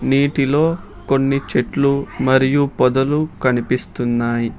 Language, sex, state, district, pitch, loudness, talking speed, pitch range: Telugu, male, Telangana, Hyderabad, 135 Hz, -17 LUFS, 80 wpm, 125-140 Hz